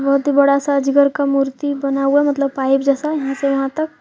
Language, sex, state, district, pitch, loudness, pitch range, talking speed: Hindi, female, Jharkhand, Deoghar, 280 Hz, -17 LUFS, 275-285 Hz, 255 wpm